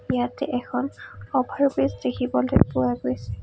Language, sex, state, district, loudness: Assamese, female, Assam, Kamrup Metropolitan, -24 LUFS